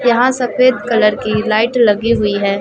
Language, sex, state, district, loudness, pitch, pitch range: Hindi, female, Chhattisgarh, Raipur, -14 LUFS, 225 Hz, 210-245 Hz